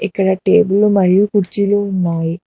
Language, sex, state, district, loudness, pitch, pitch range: Telugu, female, Telangana, Hyderabad, -14 LUFS, 200 Hz, 185-205 Hz